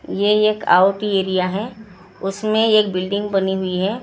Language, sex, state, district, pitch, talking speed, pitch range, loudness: Hindi, female, Maharashtra, Gondia, 195 Hz, 195 wpm, 190-215 Hz, -18 LUFS